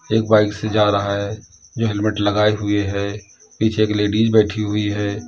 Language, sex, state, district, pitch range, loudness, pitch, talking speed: Hindi, male, Uttar Pradesh, Lalitpur, 105-110 Hz, -19 LUFS, 105 Hz, 195 wpm